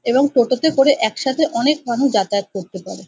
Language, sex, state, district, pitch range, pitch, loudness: Bengali, female, West Bengal, North 24 Parganas, 210-280 Hz, 250 Hz, -17 LUFS